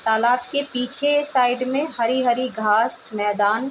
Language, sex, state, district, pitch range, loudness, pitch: Hindi, female, Bihar, Gopalganj, 225-270 Hz, -20 LUFS, 250 Hz